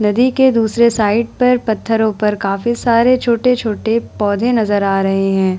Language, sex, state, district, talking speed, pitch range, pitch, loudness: Hindi, female, Bihar, Vaishali, 170 wpm, 205-235 Hz, 225 Hz, -14 LUFS